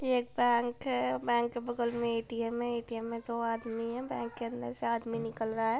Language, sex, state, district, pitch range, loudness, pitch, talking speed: Hindi, female, Bihar, Gopalganj, 230-240 Hz, -33 LUFS, 235 Hz, 240 wpm